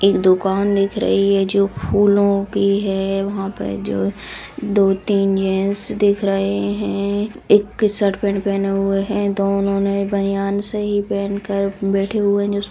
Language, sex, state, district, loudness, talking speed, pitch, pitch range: Hindi, female, Bihar, Supaul, -18 LUFS, 150 wpm, 200 Hz, 195-200 Hz